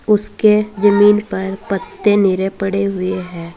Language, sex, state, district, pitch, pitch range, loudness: Hindi, female, Uttar Pradesh, Saharanpur, 195 Hz, 190-210 Hz, -16 LUFS